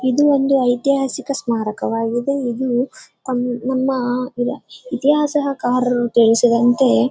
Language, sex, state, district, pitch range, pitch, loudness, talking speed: Kannada, female, Karnataka, Bellary, 240-275 Hz, 255 Hz, -18 LUFS, 70 wpm